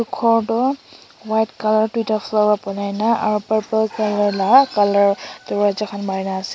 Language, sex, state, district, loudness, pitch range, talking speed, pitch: Nagamese, male, Nagaland, Kohima, -18 LUFS, 200-220 Hz, 175 wpm, 215 Hz